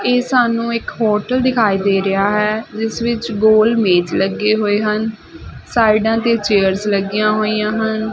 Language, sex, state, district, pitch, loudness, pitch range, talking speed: Punjabi, female, Punjab, Fazilka, 215 Hz, -16 LUFS, 210-230 Hz, 155 wpm